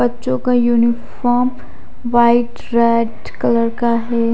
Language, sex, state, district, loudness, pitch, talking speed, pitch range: Hindi, female, Odisha, Khordha, -16 LUFS, 235 Hz, 110 wpm, 235-245 Hz